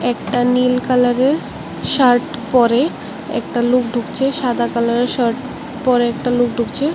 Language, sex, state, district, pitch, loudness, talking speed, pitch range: Bengali, male, Tripura, West Tripura, 245 Hz, -17 LUFS, 130 wpm, 240-260 Hz